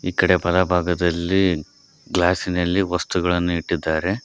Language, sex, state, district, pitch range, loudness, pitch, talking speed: Kannada, male, Karnataka, Koppal, 85-95 Hz, -20 LUFS, 90 Hz, 100 wpm